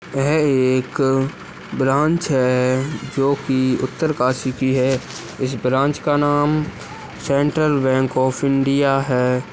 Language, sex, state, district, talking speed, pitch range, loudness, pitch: Hindi, male, Uttarakhand, Uttarkashi, 115 wpm, 130-145 Hz, -19 LUFS, 135 Hz